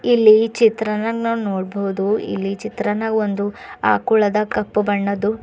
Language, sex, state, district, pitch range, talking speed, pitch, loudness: Kannada, female, Karnataka, Bidar, 205-225 Hz, 120 wpm, 210 Hz, -19 LUFS